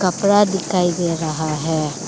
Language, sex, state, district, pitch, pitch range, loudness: Hindi, female, Arunachal Pradesh, Lower Dibang Valley, 170 Hz, 160-190 Hz, -18 LUFS